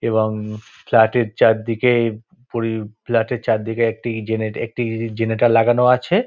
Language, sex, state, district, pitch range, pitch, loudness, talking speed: Bengali, male, West Bengal, Dakshin Dinajpur, 110-120 Hz, 115 Hz, -19 LUFS, 115 wpm